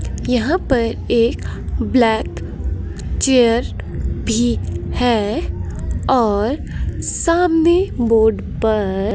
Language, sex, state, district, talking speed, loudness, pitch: Hindi, female, Himachal Pradesh, Shimla, 70 wpm, -18 LUFS, 225 Hz